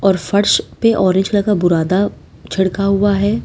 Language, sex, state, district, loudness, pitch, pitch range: Hindi, female, Uttar Pradesh, Lalitpur, -15 LUFS, 195 Hz, 190-205 Hz